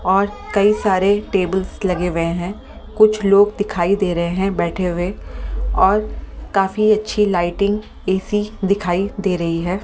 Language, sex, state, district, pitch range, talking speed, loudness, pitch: Hindi, female, Delhi, New Delhi, 175-205 Hz, 145 wpm, -18 LUFS, 195 Hz